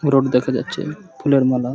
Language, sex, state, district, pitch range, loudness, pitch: Bengali, male, West Bengal, Purulia, 130-145 Hz, -19 LUFS, 135 Hz